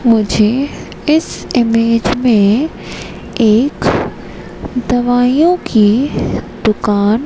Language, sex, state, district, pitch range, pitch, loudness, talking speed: Hindi, female, Madhya Pradesh, Katni, 215-265 Hz, 240 Hz, -13 LUFS, 65 wpm